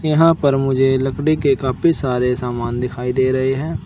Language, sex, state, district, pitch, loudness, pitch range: Hindi, male, Uttar Pradesh, Saharanpur, 135 Hz, -17 LUFS, 125-150 Hz